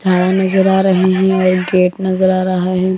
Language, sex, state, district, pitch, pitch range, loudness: Hindi, female, Punjab, Kapurthala, 185 Hz, 185-190 Hz, -13 LUFS